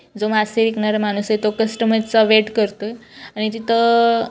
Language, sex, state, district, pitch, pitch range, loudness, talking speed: Marathi, female, Maharashtra, Chandrapur, 220 Hz, 215-230 Hz, -17 LUFS, 165 wpm